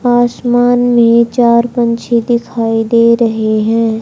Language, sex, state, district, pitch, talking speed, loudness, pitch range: Hindi, male, Haryana, Charkhi Dadri, 235 Hz, 120 wpm, -11 LUFS, 230-240 Hz